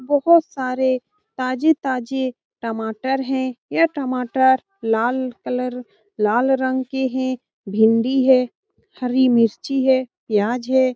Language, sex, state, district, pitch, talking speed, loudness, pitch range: Hindi, female, Bihar, Saran, 255 Hz, 110 wpm, -20 LUFS, 240-265 Hz